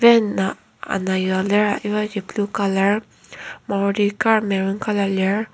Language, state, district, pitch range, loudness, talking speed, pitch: Ao, Nagaland, Kohima, 195-210 Hz, -20 LUFS, 140 wpm, 205 Hz